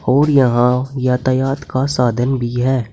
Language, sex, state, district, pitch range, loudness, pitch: Hindi, male, Uttar Pradesh, Saharanpur, 125-135 Hz, -16 LUFS, 130 Hz